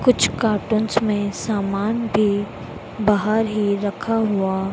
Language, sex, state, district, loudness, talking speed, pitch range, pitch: Hindi, female, Madhya Pradesh, Dhar, -21 LUFS, 115 wpm, 200-220 Hz, 210 Hz